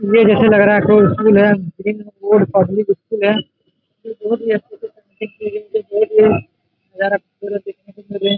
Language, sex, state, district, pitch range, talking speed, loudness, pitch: Hindi, male, Jharkhand, Jamtara, 200-220 Hz, 135 wpm, -15 LUFS, 210 Hz